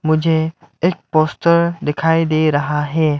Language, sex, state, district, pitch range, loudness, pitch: Hindi, male, Arunachal Pradesh, Lower Dibang Valley, 155-165 Hz, -17 LUFS, 160 Hz